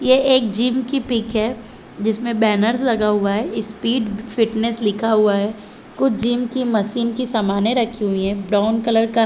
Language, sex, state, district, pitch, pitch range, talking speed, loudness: Hindi, female, Chhattisgarh, Bilaspur, 225 Hz, 215-240 Hz, 190 wpm, -19 LUFS